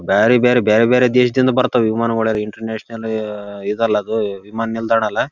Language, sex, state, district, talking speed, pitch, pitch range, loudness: Kannada, male, Karnataka, Raichur, 100 wpm, 115 Hz, 105-120 Hz, -17 LUFS